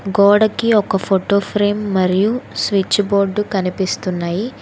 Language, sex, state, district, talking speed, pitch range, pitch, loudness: Telugu, female, Telangana, Hyderabad, 105 wpm, 190-210 Hz, 200 Hz, -16 LUFS